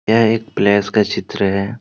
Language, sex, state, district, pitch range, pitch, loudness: Hindi, male, Jharkhand, Deoghar, 100-115 Hz, 100 Hz, -16 LUFS